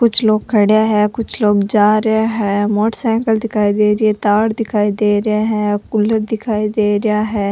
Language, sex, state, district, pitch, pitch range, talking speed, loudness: Rajasthani, female, Rajasthan, Churu, 215 Hz, 210-220 Hz, 200 wpm, -15 LUFS